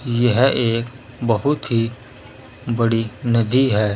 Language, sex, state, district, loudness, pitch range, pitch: Hindi, male, Uttar Pradesh, Saharanpur, -19 LUFS, 115-130 Hz, 120 Hz